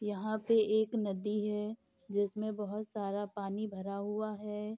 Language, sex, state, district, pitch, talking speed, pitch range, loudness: Hindi, female, Bihar, Saharsa, 210 Hz, 150 wpm, 205-215 Hz, -35 LUFS